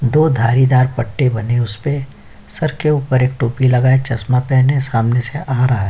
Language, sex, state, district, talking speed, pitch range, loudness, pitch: Hindi, male, Chhattisgarh, Kabirdham, 185 wpm, 120-135 Hz, -15 LUFS, 130 Hz